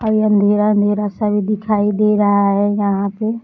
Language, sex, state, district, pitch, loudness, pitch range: Hindi, female, Uttar Pradesh, Deoria, 210 Hz, -16 LUFS, 205-210 Hz